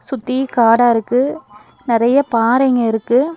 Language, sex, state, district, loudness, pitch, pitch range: Tamil, female, Tamil Nadu, Nilgiris, -15 LUFS, 245 Hz, 230-265 Hz